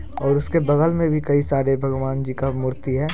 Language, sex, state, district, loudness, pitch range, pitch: Hindi, male, Bihar, Saran, -21 LUFS, 135-150 Hz, 140 Hz